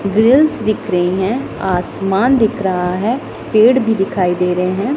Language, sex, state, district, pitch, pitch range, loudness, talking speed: Hindi, female, Punjab, Pathankot, 200 Hz, 185-235 Hz, -15 LUFS, 170 wpm